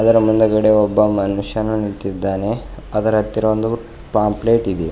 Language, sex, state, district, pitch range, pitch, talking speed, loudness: Kannada, male, Karnataka, Bidar, 100-110 Hz, 105 Hz, 120 wpm, -17 LUFS